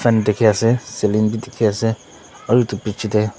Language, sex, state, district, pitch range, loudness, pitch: Nagamese, male, Nagaland, Dimapur, 105-115 Hz, -18 LUFS, 110 Hz